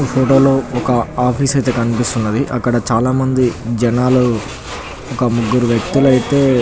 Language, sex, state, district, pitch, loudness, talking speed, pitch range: Telugu, male, Telangana, Nalgonda, 125 Hz, -15 LUFS, 145 wpm, 120-130 Hz